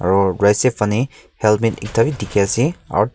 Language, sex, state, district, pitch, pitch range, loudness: Nagamese, male, Nagaland, Kohima, 105 Hz, 100-120 Hz, -18 LUFS